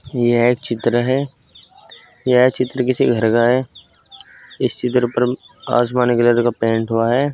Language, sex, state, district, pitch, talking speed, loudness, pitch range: Hindi, male, Uttar Pradesh, Saharanpur, 120 Hz, 155 wpm, -17 LUFS, 120-125 Hz